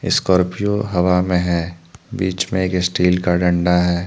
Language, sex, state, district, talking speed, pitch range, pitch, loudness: Hindi, male, Jharkhand, Deoghar, 160 wpm, 90-95 Hz, 90 Hz, -18 LUFS